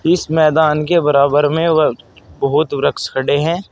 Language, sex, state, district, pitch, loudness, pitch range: Hindi, male, Uttar Pradesh, Saharanpur, 150 Hz, -15 LUFS, 140-160 Hz